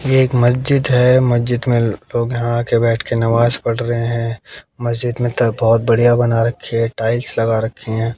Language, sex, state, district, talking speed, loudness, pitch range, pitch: Hindi, male, Haryana, Jhajjar, 190 wpm, -16 LUFS, 115-120 Hz, 120 Hz